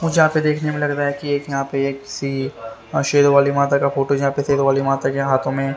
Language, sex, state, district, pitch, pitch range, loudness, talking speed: Hindi, male, Haryana, Rohtak, 140 Hz, 135-145 Hz, -19 LUFS, 280 wpm